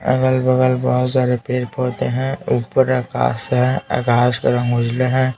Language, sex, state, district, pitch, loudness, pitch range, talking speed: Hindi, male, Bihar, Patna, 125 Hz, -18 LUFS, 125-130 Hz, 170 wpm